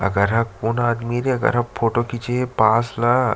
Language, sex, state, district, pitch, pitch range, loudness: Chhattisgarhi, male, Chhattisgarh, Sarguja, 120 Hz, 115-120 Hz, -20 LUFS